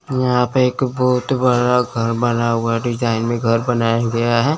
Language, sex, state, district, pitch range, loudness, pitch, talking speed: Hindi, male, Chandigarh, Chandigarh, 115-125 Hz, -17 LUFS, 120 Hz, 185 wpm